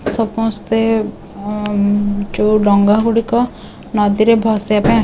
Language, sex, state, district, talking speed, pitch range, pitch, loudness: Odia, female, Odisha, Khordha, 95 wpm, 205-225 Hz, 215 Hz, -15 LUFS